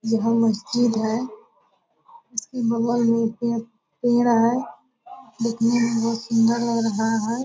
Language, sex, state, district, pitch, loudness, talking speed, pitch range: Hindi, female, Bihar, Purnia, 230 Hz, -22 LUFS, 145 wpm, 225-240 Hz